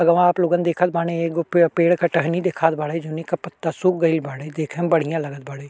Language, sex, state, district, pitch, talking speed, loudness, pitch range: Bhojpuri, male, Uttar Pradesh, Deoria, 170 Hz, 240 wpm, -21 LUFS, 160-175 Hz